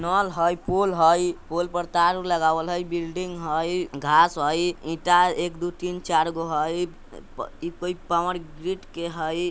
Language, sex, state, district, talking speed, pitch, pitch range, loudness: Bajjika, male, Bihar, Vaishali, 150 wpm, 170 Hz, 165-180 Hz, -24 LUFS